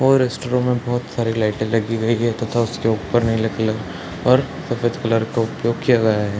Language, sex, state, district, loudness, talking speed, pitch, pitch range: Hindi, male, Bihar, Sitamarhi, -20 LUFS, 215 wpm, 115 Hz, 110-120 Hz